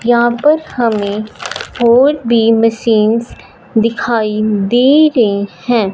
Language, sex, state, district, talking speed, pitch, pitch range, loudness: Hindi, female, Punjab, Fazilka, 100 wpm, 230 Hz, 215-245 Hz, -13 LUFS